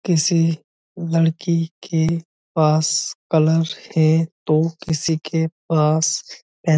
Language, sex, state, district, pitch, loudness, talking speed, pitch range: Hindi, male, Uttar Pradesh, Budaun, 160 Hz, -20 LUFS, 105 wpm, 155-165 Hz